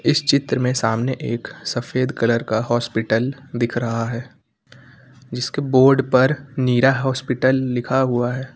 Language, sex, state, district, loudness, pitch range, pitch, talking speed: Hindi, male, Uttar Pradesh, Lucknow, -20 LUFS, 120-130 Hz, 130 Hz, 140 wpm